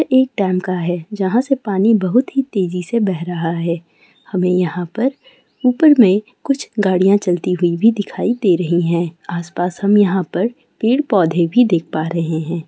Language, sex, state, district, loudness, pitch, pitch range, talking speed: Hindi, female, Bihar, Purnia, -17 LUFS, 190 Hz, 175-230 Hz, 180 wpm